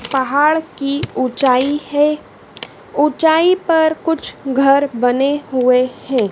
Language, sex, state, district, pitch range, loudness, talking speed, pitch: Hindi, female, Madhya Pradesh, Dhar, 260-305 Hz, -15 LUFS, 105 wpm, 280 Hz